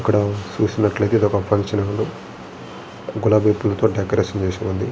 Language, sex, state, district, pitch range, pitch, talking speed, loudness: Telugu, male, Andhra Pradesh, Srikakulam, 95-110 Hz, 105 Hz, 110 wpm, -20 LUFS